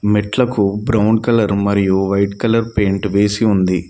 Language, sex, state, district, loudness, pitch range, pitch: Telugu, male, Telangana, Mahabubabad, -15 LUFS, 100-110 Hz, 105 Hz